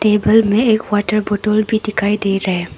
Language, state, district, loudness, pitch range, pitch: Hindi, Arunachal Pradesh, Papum Pare, -15 LUFS, 205-215 Hz, 210 Hz